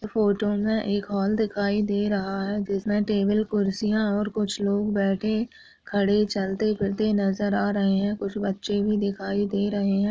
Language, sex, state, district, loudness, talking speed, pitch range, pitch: Hindi, female, Uttarakhand, Tehri Garhwal, -25 LUFS, 170 wpm, 200-210 Hz, 205 Hz